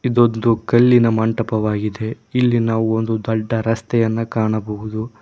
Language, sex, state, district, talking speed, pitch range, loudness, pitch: Kannada, male, Karnataka, Koppal, 105 wpm, 110-115 Hz, -18 LUFS, 115 Hz